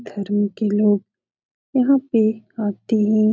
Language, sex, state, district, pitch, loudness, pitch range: Hindi, female, Uttar Pradesh, Etah, 215 Hz, -20 LUFS, 205-225 Hz